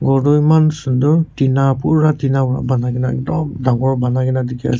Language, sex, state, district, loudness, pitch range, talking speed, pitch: Nagamese, male, Nagaland, Kohima, -16 LUFS, 130-150 Hz, 160 wpm, 135 Hz